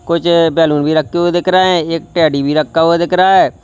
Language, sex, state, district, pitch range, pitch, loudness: Hindi, male, Uttar Pradesh, Lalitpur, 160-175 Hz, 165 Hz, -12 LUFS